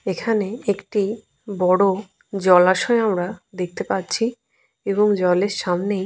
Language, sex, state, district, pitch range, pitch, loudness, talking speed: Bengali, female, Jharkhand, Jamtara, 185-210 Hz, 195 Hz, -20 LUFS, 100 wpm